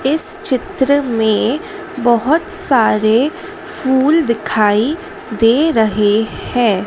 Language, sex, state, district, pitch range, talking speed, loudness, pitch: Hindi, female, Madhya Pradesh, Dhar, 220-320 Hz, 85 wpm, -15 LUFS, 260 Hz